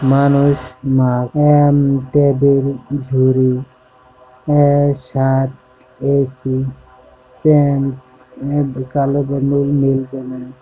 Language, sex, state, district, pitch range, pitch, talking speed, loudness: Bengali, male, West Bengal, Jalpaiguri, 130-140 Hz, 135 Hz, 50 wpm, -15 LUFS